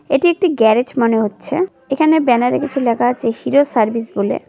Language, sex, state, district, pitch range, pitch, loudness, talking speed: Bengali, female, West Bengal, Cooch Behar, 230-295 Hz, 245 Hz, -16 LUFS, 175 wpm